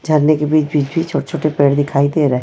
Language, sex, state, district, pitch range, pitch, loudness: Hindi, female, Chhattisgarh, Raipur, 145-155 Hz, 150 Hz, -15 LUFS